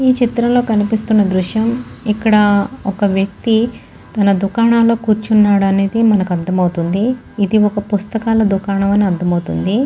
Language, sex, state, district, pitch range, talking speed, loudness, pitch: Telugu, female, Andhra Pradesh, Guntur, 195-225 Hz, 130 wpm, -15 LUFS, 210 Hz